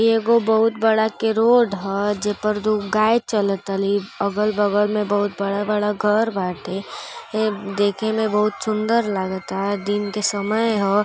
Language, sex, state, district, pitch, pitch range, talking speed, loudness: Bhojpuri, female, Uttar Pradesh, Gorakhpur, 210 Hz, 200-220 Hz, 155 wpm, -20 LUFS